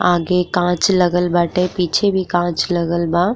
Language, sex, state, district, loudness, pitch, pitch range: Bhojpuri, female, Uttar Pradesh, Ghazipur, -17 LUFS, 175 Hz, 175-180 Hz